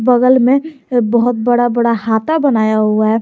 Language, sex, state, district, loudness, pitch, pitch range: Hindi, male, Jharkhand, Garhwa, -13 LUFS, 240 Hz, 220-255 Hz